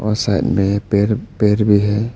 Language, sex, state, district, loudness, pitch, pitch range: Hindi, male, Arunachal Pradesh, Papum Pare, -16 LUFS, 105 Hz, 100-105 Hz